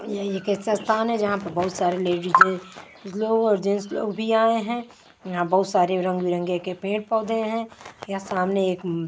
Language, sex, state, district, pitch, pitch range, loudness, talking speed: Hindi, female, Bihar, West Champaran, 195 Hz, 185-220 Hz, -23 LUFS, 185 wpm